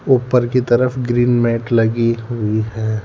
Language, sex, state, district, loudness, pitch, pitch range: Hindi, male, Madhya Pradesh, Bhopal, -16 LUFS, 120 Hz, 115-125 Hz